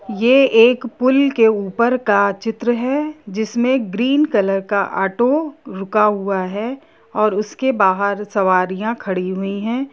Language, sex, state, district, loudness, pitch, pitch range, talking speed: Hindi, female, Jharkhand, Jamtara, -17 LUFS, 220 Hz, 200-255 Hz, 125 wpm